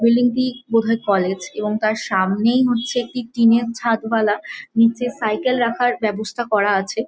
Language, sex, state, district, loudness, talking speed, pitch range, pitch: Bengali, female, West Bengal, Jhargram, -19 LUFS, 150 wpm, 215-245 Hz, 230 Hz